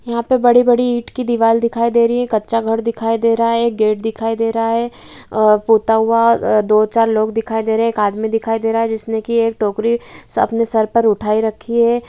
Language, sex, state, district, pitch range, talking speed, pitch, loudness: Hindi, female, Bihar, Araria, 220-235 Hz, 255 wpm, 225 Hz, -15 LUFS